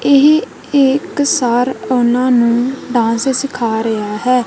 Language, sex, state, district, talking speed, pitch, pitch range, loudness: Punjabi, female, Punjab, Kapurthala, 120 wpm, 250 Hz, 235-275 Hz, -14 LUFS